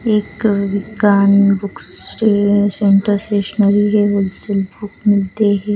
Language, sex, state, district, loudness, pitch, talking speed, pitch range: Hindi, female, Bihar, West Champaran, -15 LUFS, 205 Hz, 105 wpm, 200-210 Hz